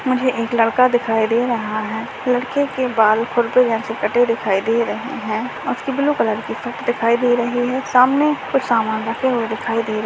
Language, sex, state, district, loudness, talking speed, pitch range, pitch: Hindi, male, Rajasthan, Churu, -18 LUFS, 210 wpm, 225-255 Hz, 240 Hz